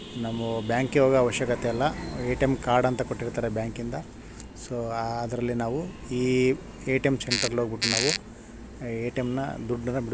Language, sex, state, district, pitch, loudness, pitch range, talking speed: Kannada, male, Karnataka, Shimoga, 120 Hz, -27 LUFS, 115-130 Hz, 135 wpm